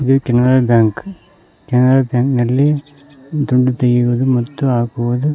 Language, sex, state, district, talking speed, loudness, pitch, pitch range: Kannada, male, Karnataka, Koppal, 110 wpm, -15 LUFS, 130 Hz, 120-140 Hz